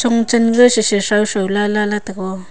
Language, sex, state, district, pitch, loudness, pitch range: Wancho, female, Arunachal Pradesh, Longding, 210 Hz, -15 LUFS, 205-230 Hz